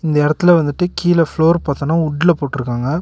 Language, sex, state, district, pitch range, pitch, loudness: Tamil, male, Tamil Nadu, Nilgiris, 145-170 Hz, 160 Hz, -15 LUFS